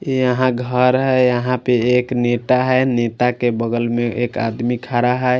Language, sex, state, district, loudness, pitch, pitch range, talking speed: Hindi, male, Punjab, Fazilka, -17 LUFS, 125 Hz, 120-125 Hz, 175 wpm